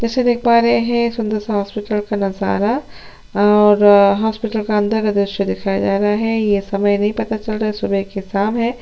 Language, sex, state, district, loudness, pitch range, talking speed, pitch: Hindi, female, Chhattisgarh, Sukma, -16 LUFS, 200-225 Hz, 205 wpm, 210 Hz